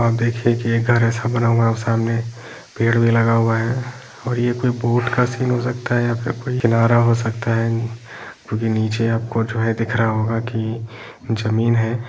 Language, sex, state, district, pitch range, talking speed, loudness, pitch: Hindi, male, Bihar, Jahanabad, 115-120 Hz, 195 wpm, -19 LUFS, 115 Hz